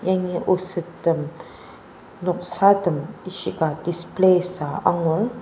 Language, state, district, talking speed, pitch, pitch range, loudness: Ao, Nagaland, Dimapur, 80 wpm, 175 Hz, 165-185 Hz, -22 LUFS